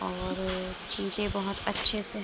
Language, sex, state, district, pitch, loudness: Hindi, female, Uttar Pradesh, Budaun, 195 Hz, -26 LUFS